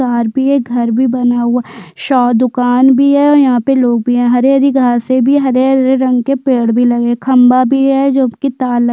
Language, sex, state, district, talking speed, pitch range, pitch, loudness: Hindi, female, Chhattisgarh, Sukma, 235 wpm, 245-270 Hz, 255 Hz, -11 LUFS